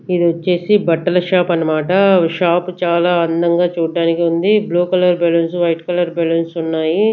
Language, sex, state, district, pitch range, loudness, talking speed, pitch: Telugu, female, Andhra Pradesh, Sri Satya Sai, 165-180 Hz, -15 LUFS, 145 wpm, 175 Hz